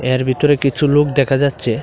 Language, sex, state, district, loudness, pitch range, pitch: Bengali, male, Tripura, Dhalai, -15 LUFS, 130-145 Hz, 140 Hz